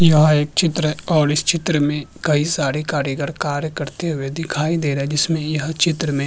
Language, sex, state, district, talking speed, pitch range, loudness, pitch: Hindi, male, Uttar Pradesh, Hamirpur, 220 wpm, 145-165 Hz, -19 LUFS, 150 Hz